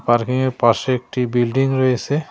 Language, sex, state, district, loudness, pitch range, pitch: Bengali, male, West Bengal, Cooch Behar, -18 LUFS, 120-130 Hz, 130 Hz